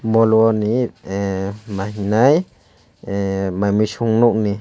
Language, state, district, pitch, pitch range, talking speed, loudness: Kokborok, Tripura, West Tripura, 105 Hz, 100-115 Hz, 115 wpm, -18 LUFS